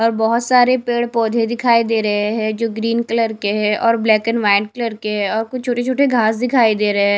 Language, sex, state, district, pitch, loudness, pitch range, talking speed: Hindi, female, Punjab, Kapurthala, 225 Hz, -17 LUFS, 215-235 Hz, 235 wpm